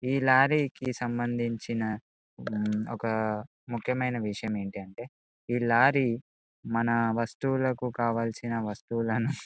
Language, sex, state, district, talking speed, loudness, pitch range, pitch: Telugu, male, Telangana, Karimnagar, 100 wpm, -29 LUFS, 110-125 Hz, 115 Hz